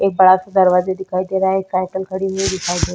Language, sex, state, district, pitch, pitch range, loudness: Hindi, female, Bihar, Vaishali, 190 Hz, 185-190 Hz, -17 LUFS